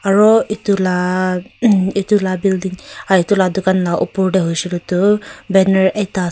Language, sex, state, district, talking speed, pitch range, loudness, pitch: Nagamese, female, Nagaland, Kohima, 200 wpm, 185-200 Hz, -15 LUFS, 190 Hz